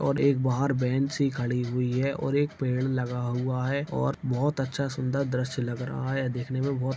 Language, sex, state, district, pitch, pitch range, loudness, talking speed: Hindi, male, Uttar Pradesh, Etah, 130 Hz, 125-140 Hz, -28 LUFS, 225 wpm